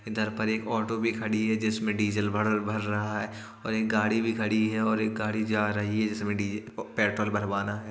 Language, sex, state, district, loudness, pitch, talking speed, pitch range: Hindi, male, Uttar Pradesh, Jalaun, -28 LUFS, 110 Hz, 235 wpm, 105-110 Hz